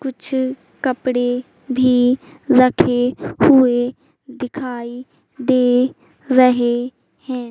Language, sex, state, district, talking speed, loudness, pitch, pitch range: Hindi, female, Madhya Pradesh, Katni, 70 wpm, -17 LUFS, 255 Hz, 245-260 Hz